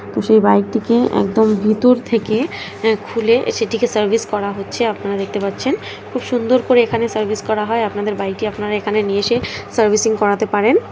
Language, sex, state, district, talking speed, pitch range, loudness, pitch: Bengali, female, West Bengal, North 24 Parganas, 160 wpm, 205-230 Hz, -17 LUFS, 215 Hz